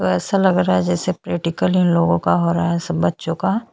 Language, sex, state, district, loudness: Hindi, female, Chhattisgarh, Sukma, -18 LUFS